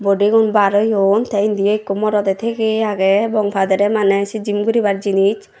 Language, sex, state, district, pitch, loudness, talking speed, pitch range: Chakma, female, Tripura, Dhalai, 205 Hz, -16 LUFS, 170 wpm, 200-215 Hz